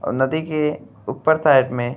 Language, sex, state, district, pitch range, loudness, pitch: Bhojpuri, male, Uttar Pradesh, Gorakhpur, 130-155 Hz, -19 LUFS, 150 Hz